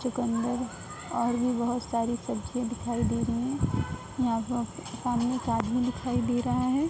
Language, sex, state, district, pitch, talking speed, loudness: Hindi, female, Uttar Pradesh, Muzaffarnagar, 235 Hz, 150 wpm, -29 LUFS